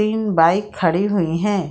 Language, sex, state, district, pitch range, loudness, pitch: Hindi, female, Bihar, Saran, 165-205 Hz, -18 LUFS, 195 Hz